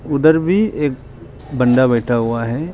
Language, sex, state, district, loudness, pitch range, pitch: Hindi, male, Arunachal Pradesh, Longding, -16 LUFS, 120-150 Hz, 130 Hz